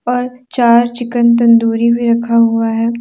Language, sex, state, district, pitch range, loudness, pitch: Hindi, female, Jharkhand, Deoghar, 230-240 Hz, -12 LUFS, 235 Hz